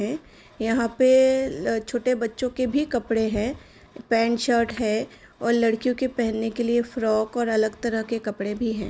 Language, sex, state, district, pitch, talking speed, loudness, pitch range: Hindi, female, Uttar Pradesh, Jalaun, 235 Hz, 180 wpm, -24 LUFS, 220-250 Hz